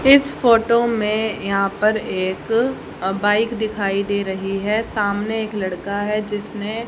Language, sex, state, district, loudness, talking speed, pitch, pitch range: Hindi, female, Haryana, Jhajjar, -20 LUFS, 150 wpm, 210 Hz, 200-225 Hz